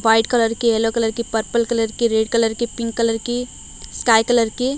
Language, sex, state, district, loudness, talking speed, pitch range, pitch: Hindi, female, Odisha, Malkangiri, -19 LUFS, 240 wpm, 225-235 Hz, 230 Hz